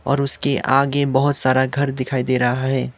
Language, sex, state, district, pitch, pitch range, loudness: Hindi, male, Sikkim, Gangtok, 135 Hz, 130-140 Hz, -19 LUFS